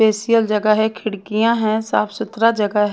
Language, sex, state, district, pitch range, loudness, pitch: Hindi, female, Haryana, Charkhi Dadri, 210-225 Hz, -18 LUFS, 215 Hz